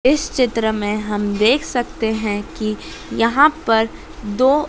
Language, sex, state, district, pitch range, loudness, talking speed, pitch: Hindi, female, Madhya Pradesh, Dhar, 215-260 Hz, -18 LUFS, 140 wpm, 225 Hz